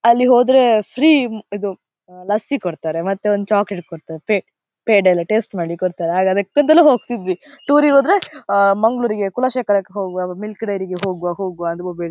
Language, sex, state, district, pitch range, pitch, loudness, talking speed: Kannada, female, Karnataka, Dakshina Kannada, 180-235 Hz, 200 Hz, -17 LUFS, 140 wpm